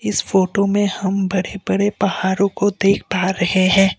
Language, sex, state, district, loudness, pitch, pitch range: Hindi, male, Assam, Kamrup Metropolitan, -18 LUFS, 195 Hz, 185-200 Hz